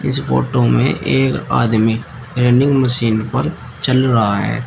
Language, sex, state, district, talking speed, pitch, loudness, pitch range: Hindi, male, Uttar Pradesh, Shamli, 140 wpm, 115 Hz, -15 LUFS, 100-130 Hz